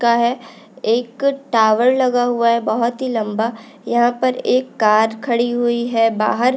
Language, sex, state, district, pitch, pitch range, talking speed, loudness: Hindi, female, Uttarakhand, Uttarkashi, 235 Hz, 225-250 Hz, 165 wpm, -17 LUFS